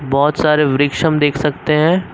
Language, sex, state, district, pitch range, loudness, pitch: Hindi, male, Uttar Pradesh, Lucknow, 145-155 Hz, -15 LUFS, 150 Hz